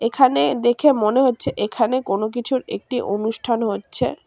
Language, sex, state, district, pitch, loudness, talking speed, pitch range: Bengali, female, West Bengal, Cooch Behar, 230 Hz, -19 LUFS, 140 wpm, 215-255 Hz